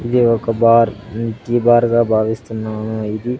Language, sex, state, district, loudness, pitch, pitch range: Telugu, male, Andhra Pradesh, Sri Satya Sai, -16 LUFS, 115 Hz, 110-120 Hz